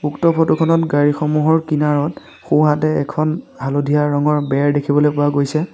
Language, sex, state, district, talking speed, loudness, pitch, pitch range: Assamese, male, Assam, Sonitpur, 145 wpm, -16 LUFS, 150 Hz, 145-155 Hz